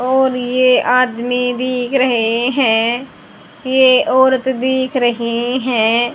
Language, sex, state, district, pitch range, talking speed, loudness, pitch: Hindi, female, Haryana, Charkhi Dadri, 240-260 Hz, 105 wpm, -14 LUFS, 250 Hz